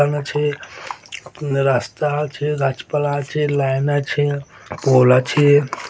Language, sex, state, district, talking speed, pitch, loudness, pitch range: Bengali, male, West Bengal, Dakshin Dinajpur, 110 wpm, 145 Hz, -18 LUFS, 135-150 Hz